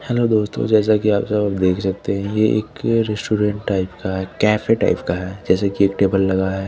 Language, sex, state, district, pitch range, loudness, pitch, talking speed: Hindi, male, Chandigarh, Chandigarh, 95-110 Hz, -19 LUFS, 100 Hz, 225 wpm